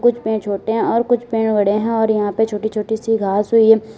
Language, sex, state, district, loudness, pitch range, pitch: Hindi, female, Uttar Pradesh, Lalitpur, -17 LUFS, 210-225 Hz, 220 Hz